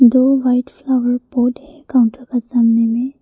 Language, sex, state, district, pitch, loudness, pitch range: Hindi, female, Arunachal Pradesh, Papum Pare, 250 Hz, -16 LUFS, 245-265 Hz